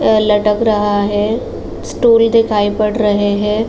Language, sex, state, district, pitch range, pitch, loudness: Hindi, female, Uttar Pradesh, Jalaun, 205-225 Hz, 210 Hz, -13 LUFS